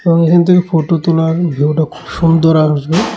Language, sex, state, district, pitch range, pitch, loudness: Bengali, male, Tripura, West Tripura, 160-170 Hz, 165 Hz, -12 LUFS